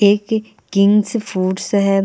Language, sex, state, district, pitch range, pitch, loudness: Hindi, female, Uttarakhand, Uttarkashi, 195-210 Hz, 200 Hz, -17 LUFS